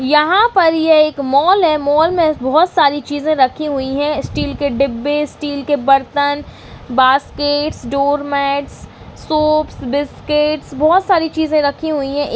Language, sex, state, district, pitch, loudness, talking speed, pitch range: Hindi, female, Uttarakhand, Uttarkashi, 290 Hz, -15 LUFS, 145 wpm, 280-310 Hz